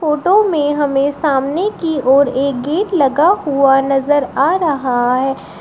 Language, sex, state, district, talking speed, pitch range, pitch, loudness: Hindi, female, Uttar Pradesh, Shamli, 150 wpm, 270-320 Hz, 285 Hz, -14 LUFS